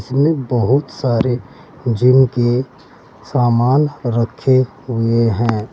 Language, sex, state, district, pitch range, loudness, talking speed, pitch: Hindi, male, Uttar Pradesh, Saharanpur, 115-135 Hz, -16 LUFS, 95 wpm, 125 Hz